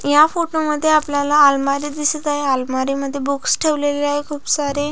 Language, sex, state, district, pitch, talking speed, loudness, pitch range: Marathi, female, Maharashtra, Pune, 290 Hz, 185 wpm, -17 LUFS, 280-300 Hz